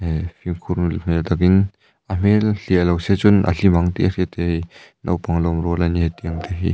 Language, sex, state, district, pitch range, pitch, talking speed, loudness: Mizo, male, Mizoram, Aizawl, 85-95 Hz, 90 Hz, 240 wpm, -19 LUFS